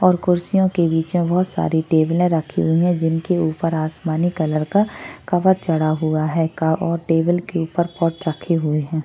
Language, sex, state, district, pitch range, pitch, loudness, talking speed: Hindi, female, Maharashtra, Chandrapur, 160-175 Hz, 165 Hz, -19 LUFS, 190 wpm